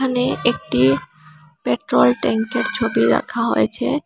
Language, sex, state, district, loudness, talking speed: Bengali, female, Assam, Hailakandi, -18 LUFS, 105 wpm